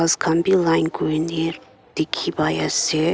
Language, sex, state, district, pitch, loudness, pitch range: Nagamese, female, Nagaland, Kohima, 165 Hz, -21 LUFS, 160-170 Hz